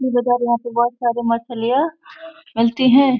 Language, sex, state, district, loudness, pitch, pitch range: Hindi, female, Uttar Pradesh, Deoria, -18 LUFS, 245 Hz, 235-270 Hz